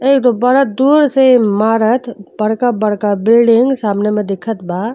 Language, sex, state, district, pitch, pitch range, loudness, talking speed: Bhojpuri, female, Uttar Pradesh, Deoria, 225 Hz, 210-255 Hz, -13 LUFS, 155 wpm